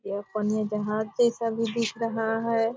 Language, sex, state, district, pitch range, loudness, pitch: Hindi, female, Bihar, Purnia, 215-230 Hz, -27 LUFS, 225 Hz